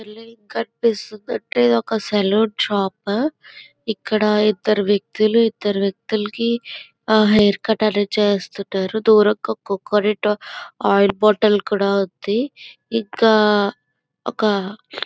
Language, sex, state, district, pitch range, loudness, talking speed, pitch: Telugu, female, Andhra Pradesh, Visakhapatnam, 200-220 Hz, -18 LUFS, 90 wpm, 210 Hz